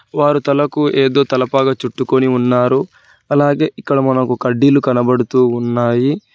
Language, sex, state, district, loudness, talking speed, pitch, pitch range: Telugu, male, Telangana, Hyderabad, -14 LUFS, 115 wpm, 130 Hz, 125-140 Hz